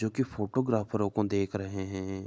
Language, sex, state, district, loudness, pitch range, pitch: Hindi, male, Uttar Pradesh, Jalaun, -31 LUFS, 95-110 Hz, 105 Hz